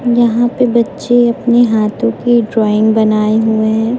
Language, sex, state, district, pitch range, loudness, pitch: Hindi, female, Madhya Pradesh, Umaria, 220-240 Hz, -12 LUFS, 230 Hz